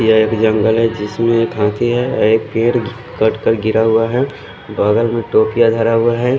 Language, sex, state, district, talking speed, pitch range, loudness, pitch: Hindi, male, Odisha, Khordha, 195 wpm, 110-115 Hz, -15 LUFS, 115 Hz